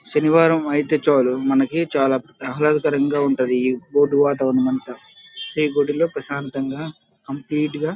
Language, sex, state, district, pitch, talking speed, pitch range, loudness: Telugu, male, Andhra Pradesh, Krishna, 145 Hz, 105 wpm, 135-150 Hz, -19 LUFS